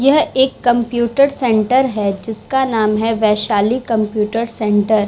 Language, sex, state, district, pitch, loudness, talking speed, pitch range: Hindi, female, Bihar, Vaishali, 225 Hz, -16 LUFS, 140 wpm, 215-255 Hz